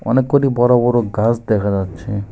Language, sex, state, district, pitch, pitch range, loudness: Bengali, male, West Bengal, Alipurduar, 115 Hz, 100-120 Hz, -16 LUFS